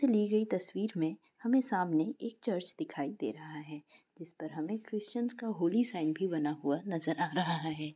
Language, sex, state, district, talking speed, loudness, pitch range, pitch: Hindi, female, Bihar, Madhepura, 195 wpm, -34 LUFS, 155-215 Hz, 175 Hz